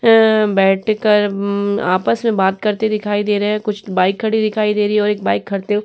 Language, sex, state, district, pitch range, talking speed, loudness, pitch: Hindi, female, Uttar Pradesh, Etah, 200-215 Hz, 225 wpm, -16 LUFS, 210 Hz